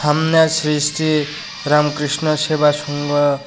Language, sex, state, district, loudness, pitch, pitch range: Bengali, male, Tripura, West Tripura, -17 LUFS, 150 Hz, 145-155 Hz